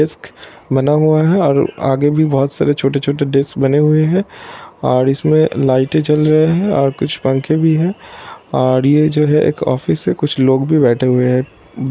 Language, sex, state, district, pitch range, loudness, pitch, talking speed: Hindi, male, Bihar, Sitamarhi, 135-155 Hz, -14 LUFS, 145 Hz, 200 wpm